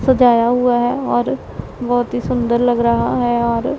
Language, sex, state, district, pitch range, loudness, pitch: Hindi, female, Punjab, Pathankot, 235-245 Hz, -16 LUFS, 240 Hz